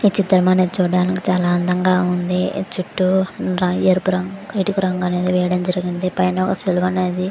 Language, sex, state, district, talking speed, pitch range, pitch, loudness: Telugu, female, Andhra Pradesh, Guntur, 165 wpm, 180-185 Hz, 185 Hz, -18 LUFS